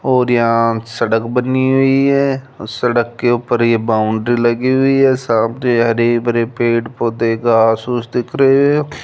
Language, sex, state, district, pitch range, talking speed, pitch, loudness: Hindi, male, Rajasthan, Jaipur, 115-130 Hz, 160 wpm, 120 Hz, -14 LUFS